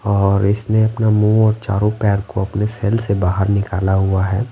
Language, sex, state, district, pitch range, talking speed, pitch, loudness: Hindi, male, Bihar, West Champaran, 100-110 Hz, 200 wpm, 100 Hz, -16 LUFS